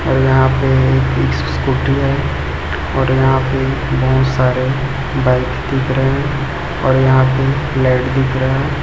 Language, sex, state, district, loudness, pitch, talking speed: Hindi, male, Chhattisgarh, Raipur, -15 LUFS, 130 Hz, 145 wpm